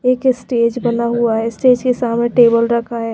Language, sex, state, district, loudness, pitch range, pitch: Hindi, female, Himachal Pradesh, Shimla, -15 LUFS, 235-250 Hz, 235 Hz